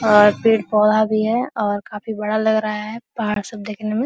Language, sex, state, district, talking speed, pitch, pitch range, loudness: Hindi, female, Bihar, Araria, 220 wpm, 215 Hz, 210-220 Hz, -19 LUFS